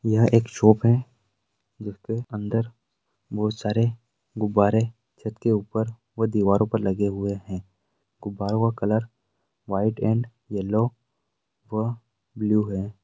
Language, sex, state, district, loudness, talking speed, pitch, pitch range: Hindi, male, Uttar Pradesh, Budaun, -24 LUFS, 120 wpm, 110 Hz, 100-115 Hz